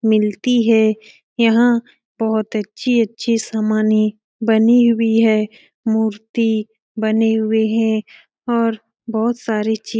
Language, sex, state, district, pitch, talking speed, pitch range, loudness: Hindi, female, Bihar, Lakhisarai, 220 Hz, 110 wpm, 220-230 Hz, -17 LUFS